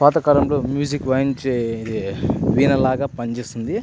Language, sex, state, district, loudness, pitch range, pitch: Telugu, male, Andhra Pradesh, Anantapur, -20 LUFS, 120-140 Hz, 135 Hz